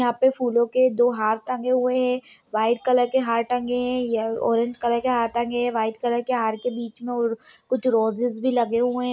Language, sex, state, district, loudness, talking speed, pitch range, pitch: Hindi, female, Bihar, Lakhisarai, -23 LUFS, 235 wpm, 230-250 Hz, 245 Hz